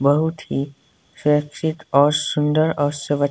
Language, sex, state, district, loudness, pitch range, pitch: Hindi, male, Himachal Pradesh, Shimla, -20 LUFS, 145-155 Hz, 150 Hz